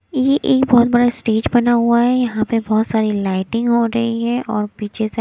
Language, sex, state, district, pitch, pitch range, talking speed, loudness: Hindi, female, Punjab, Kapurthala, 235 Hz, 220-240 Hz, 220 wpm, -16 LUFS